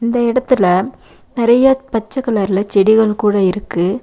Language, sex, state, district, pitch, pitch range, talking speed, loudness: Tamil, female, Tamil Nadu, Nilgiris, 220 Hz, 195-250 Hz, 120 wpm, -14 LUFS